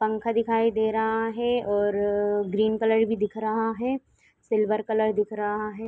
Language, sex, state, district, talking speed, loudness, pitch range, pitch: Hindi, female, Uttar Pradesh, Etah, 175 wpm, -25 LUFS, 210-225 Hz, 220 Hz